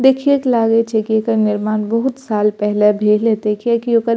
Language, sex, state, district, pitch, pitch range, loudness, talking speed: Maithili, female, Bihar, Purnia, 225 Hz, 210-235 Hz, -16 LUFS, 215 wpm